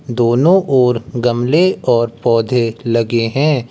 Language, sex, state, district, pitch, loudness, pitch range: Hindi, male, Uttar Pradesh, Lucknow, 120 Hz, -14 LUFS, 115-135 Hz